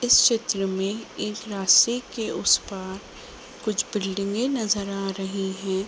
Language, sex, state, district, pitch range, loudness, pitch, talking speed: Hindi, female, Uttar Pradesh, Gorakhpur, 195-220 Hz, -24 LUFS, 200 Hz, 145 wpm